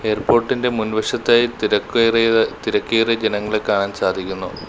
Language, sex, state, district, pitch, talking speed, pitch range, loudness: Malayalam, male, Kerala, Kollam, 110 Hz, 100 wpm, 105-115 Hz, -18 LUFS